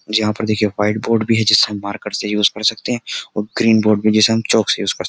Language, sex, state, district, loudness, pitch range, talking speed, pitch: Hindi, male, Uttar Pradesh, Jyotiba Phule Nagar, -16 LUFS, 105-110 Hz, 305 wpm, 110 Hz